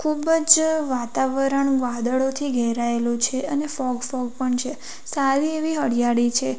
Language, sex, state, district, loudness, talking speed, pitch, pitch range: Gujarati, female, Gujarat, Valsad, -22 LUFS, 145 wpm, 265 Hz, 240-290 Hz